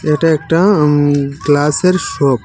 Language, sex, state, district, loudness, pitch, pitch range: Bengali, male, Tripura, Unakoti, -13 LUFS, 150 Hz, 145-165 Hz